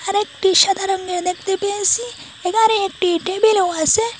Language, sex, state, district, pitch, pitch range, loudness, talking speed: Bengali, female, Assam, Hailakandi, 390 Hz, 370-420 Hz, -17 LUFS, 145 wpm